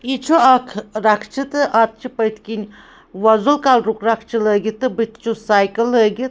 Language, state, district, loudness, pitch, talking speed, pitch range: Kashmiri, Punjab, Kapurthala, -16 LUFS, 225 Hz, 170 wpm, 220-255 Hz